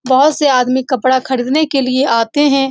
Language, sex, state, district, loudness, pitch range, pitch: Hindi, female, Bihar, Saran, -13 LUFS, 255-285 Hz, 265 Hz